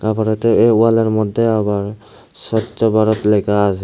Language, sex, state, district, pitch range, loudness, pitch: Bengali, male, Tripura, Unakoti, 105-115 Hz, -15 LUFS, 110 Hz